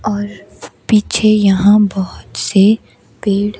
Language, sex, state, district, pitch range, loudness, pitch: Hindi, female, Himachal Pradesh, Shimla, 200-210 Hz, -14 LUFS, 205 Hz